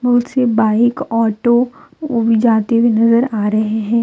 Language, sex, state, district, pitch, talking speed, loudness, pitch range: Hindi, female, Jharkhand, Deoghar, 230 Hz, 165 wpm, -14 LUFS, 225-245 Hz